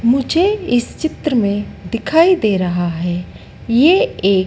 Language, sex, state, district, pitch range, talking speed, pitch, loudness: Hindi, female, Madhya Pradesh, Dhar, 195-320 Hz, 135 wpm, 235 Hz, -16 LUFS